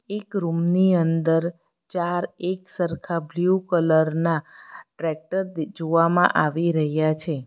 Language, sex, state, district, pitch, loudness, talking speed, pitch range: Gujarati, female, Gujarat, Valsad, 170 Hz, -23 LUFS, 130 wpm, 160-180 Hz